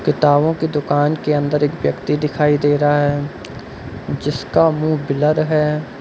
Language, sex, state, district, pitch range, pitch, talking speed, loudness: Hindi, male, Uttar Pradesh, Lucknow, 145-150 Hz, 150 Hz, 150 wpm, -17 LUFS